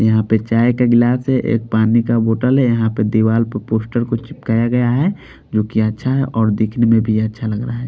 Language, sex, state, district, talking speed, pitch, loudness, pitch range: Hindi, male, Bihar, Patna, 235 wpm, 115 Hz, -16 LUFS, 110-120 Hz